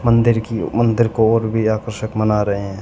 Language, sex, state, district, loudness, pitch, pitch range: Hindi, male, Haryana, Charkhi Dadri, -17 LUFS, 110 Hz, 110-115 Hz